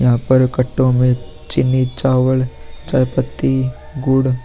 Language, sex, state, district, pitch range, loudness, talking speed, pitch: Hindi, male, Bihar, Vaishali, 125-130 Hz, -16 LUFS, 120 wpm, 130 Hz